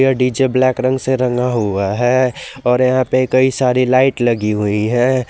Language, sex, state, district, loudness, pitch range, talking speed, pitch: Hindi, male, Jharkhand, Garhwa, -15 LUFS, 120-130 Hz, 180 wpm, 125 Hz